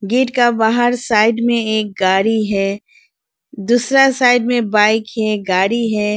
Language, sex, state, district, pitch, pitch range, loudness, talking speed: Hindi, female, Arunachal Pradesh, Lower Dibang Valley, 220 Hz, 210-240 Hz, -15 LUFS, 145 wpm